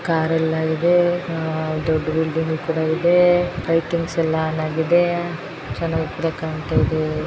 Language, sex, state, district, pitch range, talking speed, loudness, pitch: Kannada, female, Karnataka, Dakshina Kannada, 160-170 Hz, 125 wpm, -20 LUFS, 160 Hz